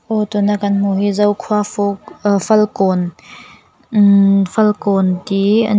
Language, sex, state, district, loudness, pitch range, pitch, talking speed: Mizo, female, Mizoram, Aizawl, -15 LUFS, 195-210 Hz, 205 Hz, 135 wpm